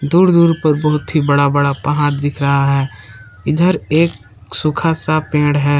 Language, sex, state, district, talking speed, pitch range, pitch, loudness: Hindi, male, Jharkhand, Palamu, 175 wpm, 140-155 Hz, 145 Hz, -15 LUFS